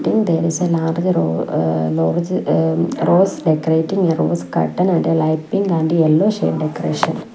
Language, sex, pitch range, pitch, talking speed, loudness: English, female, 155-180 Hz, 165 Hz, 170 wpm, -17 LUFS